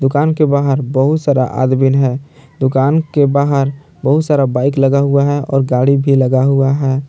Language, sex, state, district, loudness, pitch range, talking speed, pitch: Hindi, male, Jharkhand, Palamu, -13 LUFS, 135-140 Hz, 185 wpm, 140 Hz